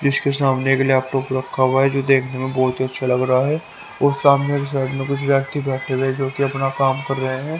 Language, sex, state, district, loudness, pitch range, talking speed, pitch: Hindi, male, Haryana, Rohtak, -19 LUFS, 130-140 Hz, 250 wpm, 135 Hz